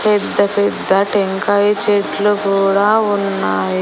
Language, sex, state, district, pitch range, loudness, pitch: Telugu, female, Andhra Pradesh, Annamaya, 195-205 Hz, -15 LUFS, 200 Hz